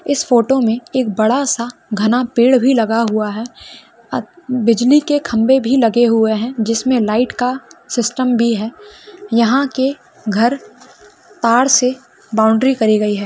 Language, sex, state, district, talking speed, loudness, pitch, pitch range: Hindi, female, Uttarakhand, Uttarkashi, 160 wpm, -15 LUFS, 240 Hz, 225-260 Hz